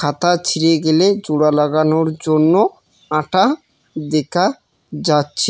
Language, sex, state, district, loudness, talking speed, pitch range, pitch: Bengali, male, West Bengal, Cooch Behar, -16 LUFS, 100 wpm, 155-180 Hz, 160 Hz